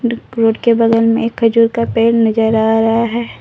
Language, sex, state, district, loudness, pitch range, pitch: Hindi, female, Jharkhand, Deoghar, -13 LUFS, 225-230 Hz, 230 Hz